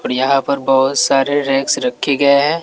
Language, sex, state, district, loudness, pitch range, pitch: Hindi, male, Bihar, West Champaran, -14 LUFS, 135-145 Hz, 140 Hz